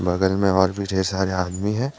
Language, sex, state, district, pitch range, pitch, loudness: Hindi, male, Jharkhand, Deoghar, 95-100 Hz, 95 Hz, -21 LUFS